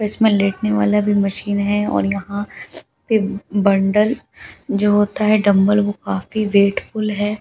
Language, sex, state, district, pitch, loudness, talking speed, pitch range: Hindi, female, Delhi, New Delhi, 205 Hz, -17 LUFS, 160 wpm, 200-210 Hz